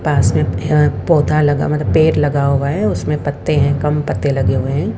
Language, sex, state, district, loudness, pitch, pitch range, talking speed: Hindi, female, Haryana, Rohtak, -15 LUFS, 145 Hz, 140-150 Hz, 215 wpm